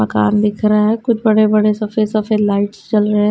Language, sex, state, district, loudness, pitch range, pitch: Hindi, female, Haryana, Rohtak, -15 LUFS, 210-215 Hz, 210 Hz